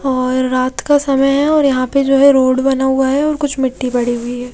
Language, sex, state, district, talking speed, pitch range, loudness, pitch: Hindi, female, Odisha, Nuapada, 265 wpm, 255-275 Hz, -14 LUFS, 265 Hz